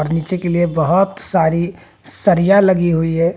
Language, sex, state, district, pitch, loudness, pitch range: Hindi, female, Haryana, Jhajjar, 175 Hz, -15 LUFS, 165-185 Hz